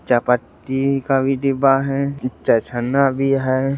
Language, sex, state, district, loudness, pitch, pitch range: Angika, male, Bihar, Begusarai, -18 LUFS, 135 Hz, 130-135 Hz